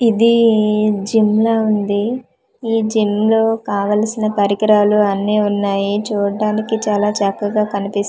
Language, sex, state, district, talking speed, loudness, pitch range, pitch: Telugu, female, Andhra Pradesh, Manyam, 120 wpm, -16 LUFS, 205-220 Hz, 210 Hz